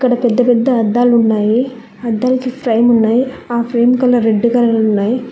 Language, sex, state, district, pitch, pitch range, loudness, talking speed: Telugu, female, Telangana, Hyderabad, 240 Hz, 225-250 Hz, -13 LUFS, 160 wpm